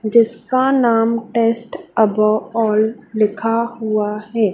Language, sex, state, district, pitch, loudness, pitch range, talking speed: Hindi, female, Madhya Pradesh, Dhar, 225 Hz, -17 LUFS, 215-230 Hz, 105 wpm